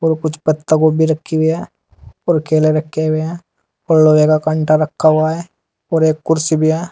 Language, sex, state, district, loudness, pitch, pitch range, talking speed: Hindi, male, Uttar Pradesh, Saharanpur, -15 LUFS, 155 Hz, 155-160 Hz, 200 wpm